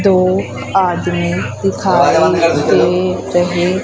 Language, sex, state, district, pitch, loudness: Hindi, female, Madhya Pradesh, Umaria, 175 Hz, -14 LUFS